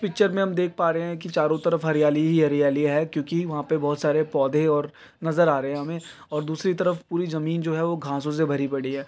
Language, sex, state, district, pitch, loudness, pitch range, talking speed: Hindi, male, Uttar Pradesh, Varanasi, 155 Hz, -24 LUFS, 150-170 Hz, 255 wpm